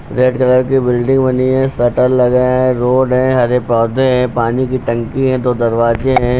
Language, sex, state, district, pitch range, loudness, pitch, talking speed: Hindi, male, Uttar Pradesh, Lucknow, 120-130 Hz, -13 LUFS, 125 Hz, 195 wpm